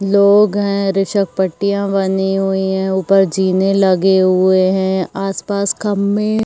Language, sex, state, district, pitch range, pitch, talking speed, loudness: Hindi, female, Uttar Pradesh, Jyotiba Phule Nagar, 190-200 Hz, 195 Hz, 140 wpm, -15 LUFS